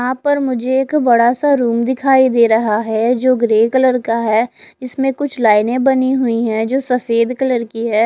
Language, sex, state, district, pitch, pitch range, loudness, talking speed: Hindi, female, Odisha, Khordha, 250 Hz, 230-265 Hz, -15 LUFS, 200 wpm